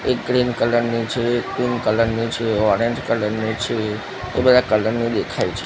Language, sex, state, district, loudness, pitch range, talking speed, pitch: Gujarati, male, Gujarat, Gandhinagar, -20 LUFS, 110-120 Hz, 200 wpm, 115 Hz